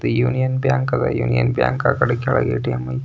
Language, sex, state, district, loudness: Kannada, male, Karnataka, Belgaum, -19 LUFS